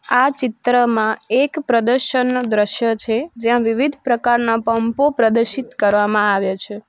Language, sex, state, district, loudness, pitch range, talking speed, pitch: Gujarati, female, Gujarat, Valsad, -17 LUFS, 220-255 Hz, 120 wpm, 235 Hz